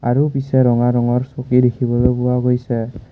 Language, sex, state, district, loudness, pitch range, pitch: Assamese, male, Assam, Kamrup Metropolitan, -17 LUFS, 120-130 Hz, 125 Hz